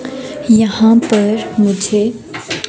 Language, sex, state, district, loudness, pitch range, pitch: Hindi, female, Himachal Pradesh, Shimla, -13 LUFS, 210-235 Hz, 220 Hz